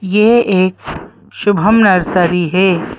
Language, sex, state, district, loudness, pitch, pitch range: Hindi, female, Madhya Pradesh, Bhopal, -12 LUFS, 190 Hz, 180-210 Hz